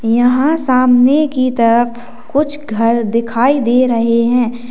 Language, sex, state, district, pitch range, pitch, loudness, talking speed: Hindi, female, Uttar Pradesh, Lalitpur, 235-260 Hz, 245 Hz, -13 LUFS, 130 wpm